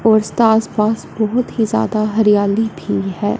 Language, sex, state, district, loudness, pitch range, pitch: Hindi, female, Punjab, Fazilka, -16 LUFS, 205-225 Hz, 215 Hz